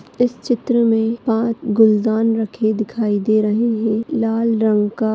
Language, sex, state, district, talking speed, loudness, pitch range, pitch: Hindi, female, Maharashtra, Solapur, 150 wpm, -17 LUFS, 215-230 Hz, 225 Hz